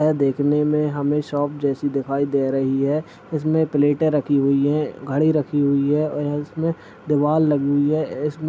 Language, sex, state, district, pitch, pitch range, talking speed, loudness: Hindi, male, Chhattisgarh, Sarguja, 145 Hz, 140-150 Hz, 185 wpm, -20 LUFS